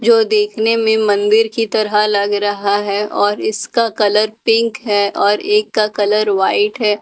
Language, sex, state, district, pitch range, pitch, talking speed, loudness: Hindi, female, Delhi, New Delhi, 205-225 Hz, 210 Hz, 195 wpm, -15 LUFS